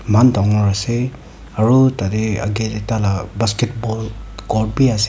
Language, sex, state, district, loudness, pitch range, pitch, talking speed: Nagamese, female, Nagaland, Kohima, -17 LUFS, 105-120 Hz, 110 Hz, 140 wpm